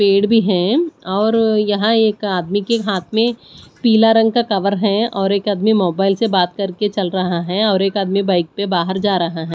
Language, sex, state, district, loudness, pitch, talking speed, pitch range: Hindi, female, Punjab, Pathankot, -16 LUFS, 200 Hz, 215 wpm, 190-220 Hz